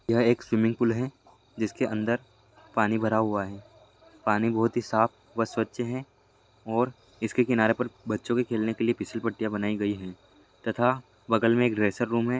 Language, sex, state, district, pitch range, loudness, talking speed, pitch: Hindi, male, Rajasthan, Churu, 110-120 Hz, -27 LUFS, 190 wpm, 115 Hz